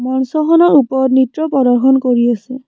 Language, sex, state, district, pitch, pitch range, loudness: Assamese, female, Assam, Kamrup Metropolitan, 265 Hz, 255-285 Hz, -12 LUFS